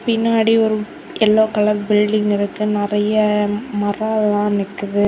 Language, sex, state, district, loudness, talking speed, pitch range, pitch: Tamil, female, Tamil Nadu, Kanyakumari, -17 LUFS, 120 wpm, 205-220 Hz, 210 Hz